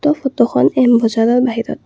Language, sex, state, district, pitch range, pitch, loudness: Assamese, female, Assam, Kamrup Metropolitan, 230-270 Hz, 245 Hz, -14 LUFS